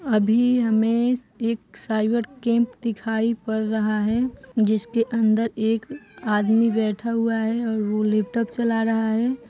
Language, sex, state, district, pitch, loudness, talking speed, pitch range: Hindi, female, Bihar, Saran, 225 Hz, -22 LUFS, 140 wpm, 220-235 Hz